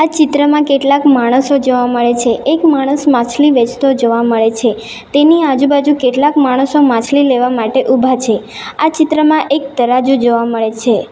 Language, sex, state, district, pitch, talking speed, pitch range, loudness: Gujarati, female, Gujarat, Valsad, 265 Hz, 155 wpm, 240-290 Hz, -11 LUFS